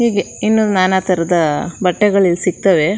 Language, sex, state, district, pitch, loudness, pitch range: Kannada, female, Karnataka, Shimoga, 190 Hz, -15 LUFS, 175-205 Hz